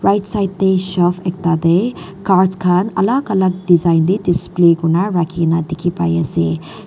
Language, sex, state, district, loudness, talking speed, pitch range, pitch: Nagamese, female, Nagaland, Dimapur, -15 LUFS, 150 wpm, 170-190 Hz, 180 Hz